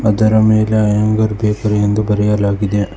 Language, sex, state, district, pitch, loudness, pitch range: Kannada, male, Karnataka, Bangalore, 105 Hz, -14 LUFS, 105-110 Hz